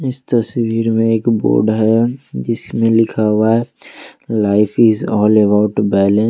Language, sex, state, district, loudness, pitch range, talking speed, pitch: Hindi, male, Jharkhand, Ranchi, -14 LUFS, 105-115 Hz, 150 wpm, 115 Hz